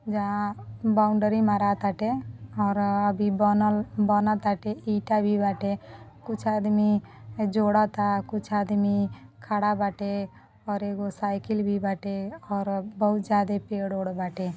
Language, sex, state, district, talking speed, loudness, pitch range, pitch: Bhojpuri, female, Uttar Pradesh, Deoria, 125 wpm, -26 LUFS, 200-210 Hz, 205 Hz